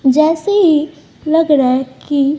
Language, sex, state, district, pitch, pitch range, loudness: Hindi, female, Bihar, West Champaran, 300 Hz, 275-320 Hz, -13 LUFS